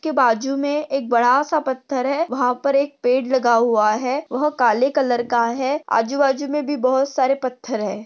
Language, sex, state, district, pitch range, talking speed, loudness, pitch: Hindi, female, Maharashtra, Sindhudurg, 245-280 Hz, 195 wpm, -19 LUFS, 265 Hz